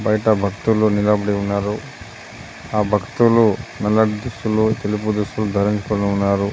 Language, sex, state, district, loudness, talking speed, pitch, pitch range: Telugu, male, Telangana, Adilabad, -19 LUFS, 110 wpm, 105 Hz, 100-110 Hz